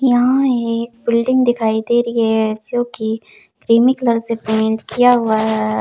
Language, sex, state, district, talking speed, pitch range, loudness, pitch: Hindi, female, Jharkhand, Palamu, 165 wpm, 220-245 Hz, -16 LUFS, 230 Hz